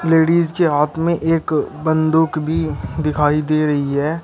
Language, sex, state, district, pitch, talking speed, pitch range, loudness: Hindi, male, Uttar Pradesh, Shamli, 155 Hz, 155 wpm, 150-165 Hz, -17 LUFS